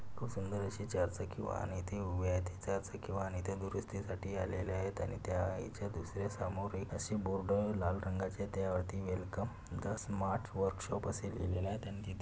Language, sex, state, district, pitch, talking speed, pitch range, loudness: Marathi, male, Maharashtra, Pune, 95 Hz, 160 wpm, 95-100 Hz, -39 LUFS